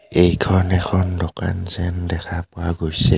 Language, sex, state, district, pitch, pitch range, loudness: Assamese, male, Assam, Kamrup Metropolitan, 90 Hz, 85-90 Hz, -20 LUFS